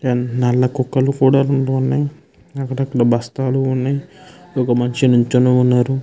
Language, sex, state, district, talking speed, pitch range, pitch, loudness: Telugu, male, Andhra Pradesh, Krishna, 120 wpm, 125-135 Hz, 130 Hz, -17 LUFS